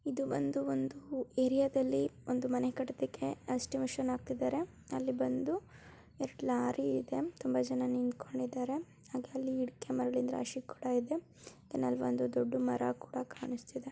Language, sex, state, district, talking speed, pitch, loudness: Kannada, female, Karnataka, Dharwad, 140 wpm, 250 Hz, -36 LUFS